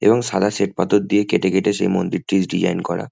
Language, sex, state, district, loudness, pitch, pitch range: Bengali, male, West Bengal, Kolkata, -19 LUFS, 100 Hz, 95-105 Hz